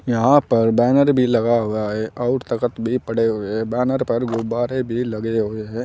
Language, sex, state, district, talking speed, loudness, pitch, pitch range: Hindi, male, Uttar Pradesh, Saharanpur, 195 wpm, -19 LUFS, 115 Hz, 115-125 Hz